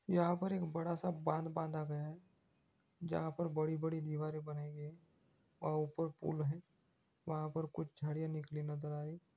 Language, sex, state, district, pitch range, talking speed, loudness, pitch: Hindi, male, Andhra Pradesh, Anantapur, 150-170 Hz, 60 wpm, -41 LUFS, 160 Hz